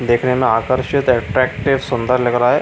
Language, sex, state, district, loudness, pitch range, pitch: Hindi, male, Bihar, Supaul, -16 LUFS, 120-130 Hz, 125 Hz